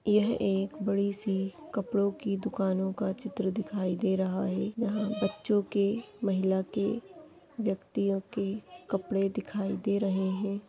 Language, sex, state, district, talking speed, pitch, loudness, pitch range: Hindi, female, Maharashtra, Chandrapur, 140 wpm, 200 Hz, -31 LUFS, 195-210 Hz